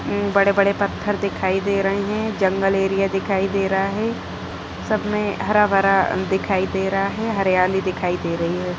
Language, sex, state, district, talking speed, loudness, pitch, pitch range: Hindi, female, Chhattisgarh, Bastar, 170 wpm, -20 LUFS, 195 Hz, 190-200 Hz